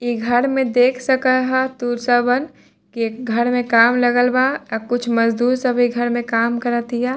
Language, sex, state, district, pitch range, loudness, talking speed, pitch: Bhojpuri, female, Bihar, Saran, 240-255 Hz, -18 LUFS, 200 wpm, 245 Hz